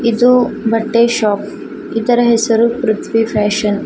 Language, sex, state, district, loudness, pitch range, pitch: Kannada, female, Karnataka, Koppal, -14 LUFS, 215-235 Hz, 225 Hz